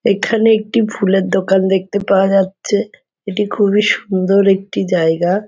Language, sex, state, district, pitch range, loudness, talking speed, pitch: Bengali, female, West Bengal, Kolkata, 190-210 Hz, -15 LUFS, 140 wpm, 195 Hz